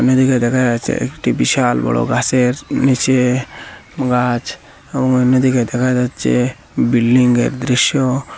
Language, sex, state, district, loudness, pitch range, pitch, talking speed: Bengali, male, Assam, Hailakandi, -15 LUFS, 120-130 Hz, 125 Hz, 105 wpm